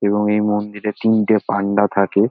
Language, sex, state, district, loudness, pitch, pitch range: Bengali, male, West Bengal, North 24 Parganas, -18 LUFS, 105 Hz, 100-105 Hz